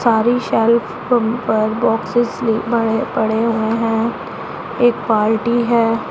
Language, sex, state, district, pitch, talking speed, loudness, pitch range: Hindi, female, Punjab, Pathankot, 230 Hz, 120 wpm, -17 LUFS, 220-235 Hz